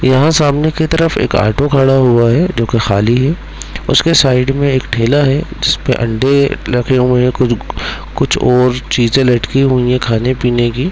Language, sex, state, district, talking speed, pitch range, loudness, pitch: Hindi, male, Bihar, Muzaffarpur, 180 wpm, 120-140 Hz, -12 LUFS, 130 Hz